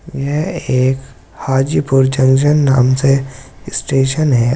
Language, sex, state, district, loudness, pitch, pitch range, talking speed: Hindi, male, Uttar Pradesh, Jyotiba Phule Nagar, -14 LUFS, 135 Hz, 130-140 Hz, 105 wpm